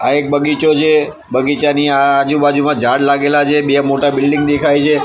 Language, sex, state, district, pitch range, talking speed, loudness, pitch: Gujarati, male, Gujarat, Gandhinagar, 140-150 Hz, 180 wpm, -13 LUFS, 145 Hz